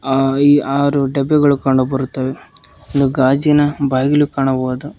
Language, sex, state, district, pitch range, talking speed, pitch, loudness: Kannada, male, Karnataka, Koppal, 130-145 Hz, 85 wpm, 135 Hz, -15 LUFS